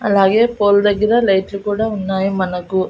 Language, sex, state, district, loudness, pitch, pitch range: Telugu, female, Andhra Pradesh, Annamaya, -16 LUFS, 200 Hz, 190-210 Hz